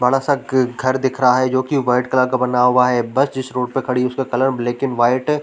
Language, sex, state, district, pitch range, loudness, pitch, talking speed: Hindi, male, Chhattisgarh, Korba, 125-135 Hz, -17 LUFS, 130 Hz, 275 wpm